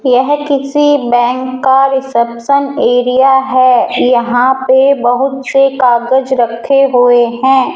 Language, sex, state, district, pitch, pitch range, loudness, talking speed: Hindi, female, Rajasthan, Jaipur, 260 Hz, 245-275 Hz, -10 LUFS, 115 wpm